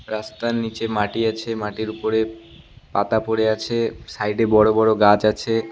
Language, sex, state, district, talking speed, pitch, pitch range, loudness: Bengali, male, West Bengal, Cooch Behar, 145 wpm, 110 Hz, 110-115 Hz, -20 LUFS